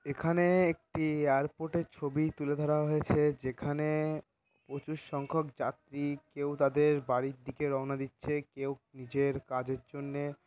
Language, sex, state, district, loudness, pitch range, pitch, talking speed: Bengali, male, West Bengal, North 24 Parganas, -33 LUFS, 140-150 Hz, 145 Hz, 125 wpm